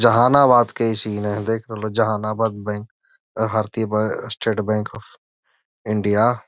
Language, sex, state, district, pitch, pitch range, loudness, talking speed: Magahi, male, Bihar, Gaya, 110 Hz, 105-115 Hz, -20 LUFS, 140 wpm